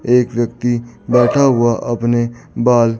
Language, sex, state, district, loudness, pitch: Hindi, male, Chandigarh, Chandigarh, -15 LUFS, 120 Hz